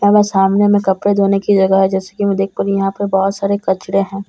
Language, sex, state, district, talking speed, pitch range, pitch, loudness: Hindi, female, Bihar, Katihar, 280 wpm, 195-200 Hz, 195 Hz, -15 LUFS